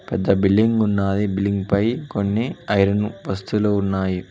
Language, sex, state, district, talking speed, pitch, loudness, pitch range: Telugu, male, Telangana, Mahabubabad, 125 wpm, 100 Hz, -20 LUFS, 95-105 Hz